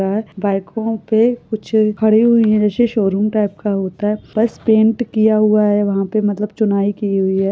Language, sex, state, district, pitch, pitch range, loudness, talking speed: Hindi, female, Maharashtra, Pune, 215 Hz, 200-220 Hz, -16 LUFS, 190 wpm